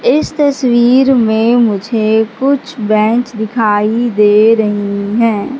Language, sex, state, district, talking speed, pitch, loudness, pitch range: Hindi, female, Madhya Pradesh, Katni, 105 wpm, 225 Hz, -12 LUFS, 215-245 Hz